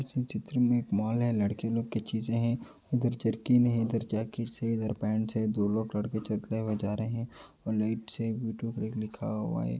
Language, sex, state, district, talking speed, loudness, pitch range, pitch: Hindi, male, Uttar Pradesh, Ghazipur, 220 wpm, -31 LUFS, 110-115 Hz, 110 Hz